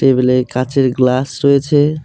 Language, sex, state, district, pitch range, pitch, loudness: Bengali, male, West Bengal, Cooch Behar, 125-140 Hz, 135 Hz, -14 LUFS